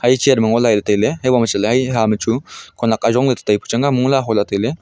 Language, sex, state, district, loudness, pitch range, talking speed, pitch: Wancho, male, Arunachal Pradesh, Longding, -16 LUFS, 110-130 Hz, 285 wpm, 115 Hz